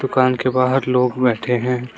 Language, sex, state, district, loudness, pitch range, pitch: Hindi, male, Arunachal Pradesh, Lower Dibang Valley, -18 LUFS, 125-130 Hz, 125 Hz